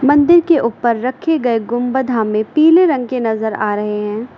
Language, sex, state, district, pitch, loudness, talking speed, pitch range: Hindi, female, Uttar Pradesh, Lucknow, 240 Hz, -15 LUFS, 190 wpm, 220-285 Hz